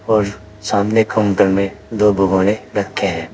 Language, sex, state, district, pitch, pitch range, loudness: Hindi, male, Uttar Pradesh, Saharanpur, 105 Hz, 100-105 Hz, -16 LUFS